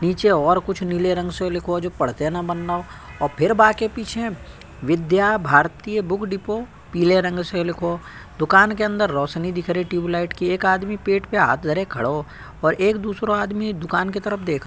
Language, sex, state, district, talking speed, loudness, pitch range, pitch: Hindi, male, Uttar Pradesh, Budaun, 210 wpm, -21 LUFS, 170-205 Hz, 180 Hz